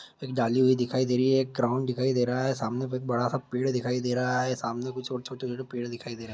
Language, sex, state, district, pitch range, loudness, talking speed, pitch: Hindi, male, Chhattisgarh, Bastar, 120-130 Hz, -28 LUFS, 310 wpm, 125 Hz